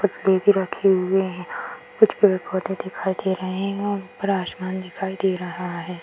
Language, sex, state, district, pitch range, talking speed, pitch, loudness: Hindi, female, Bihar, Jahanabad, 185-195 Hz, 170 wpm, 190 Hz, -23 LUFS